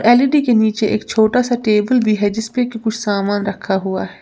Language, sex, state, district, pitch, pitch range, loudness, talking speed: Hindi, female, Uttar Pradesh, Lalitpur, 220 Hz, 205-240 Hz, -16 LUFS, 225 wpm